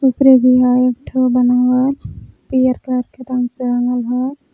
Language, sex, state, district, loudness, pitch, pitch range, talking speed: Magahi, female, Jharkhand, Palamu, -15 LUFS, 250 Hz, 250-260 Hz, 130 wpm